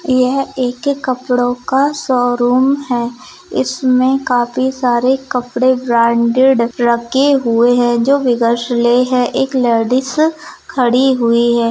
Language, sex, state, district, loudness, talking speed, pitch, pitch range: Hindi, female, Rajasthan, Churu, -14 LUFS, 115 wpm, 255 Hz, 240-265 Hz